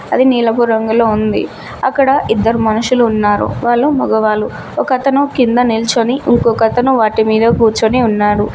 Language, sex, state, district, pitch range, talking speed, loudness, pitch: Telugu, female, Telangana, Mahabubabad, 220-250 Hz, 135 wpm, -12 LUFS, 230 Hz